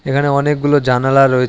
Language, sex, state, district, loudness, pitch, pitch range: Bengali, male, West Bengal, Alipurduar, -14 LUFS, 135 Hz, 135-145 Hz